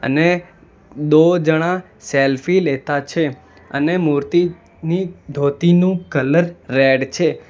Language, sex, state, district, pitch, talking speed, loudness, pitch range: Gujarati, male, Gujarat, Valsad, 160 Hz, 95 wpm, -17 LUFS, 140-175 Hz